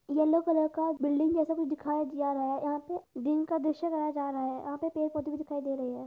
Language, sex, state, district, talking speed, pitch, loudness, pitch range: Hindi, female, Uttar Pradesh, Budaun, 285 wpm, 300 Hz, -31 LUFS, 285-320 Hz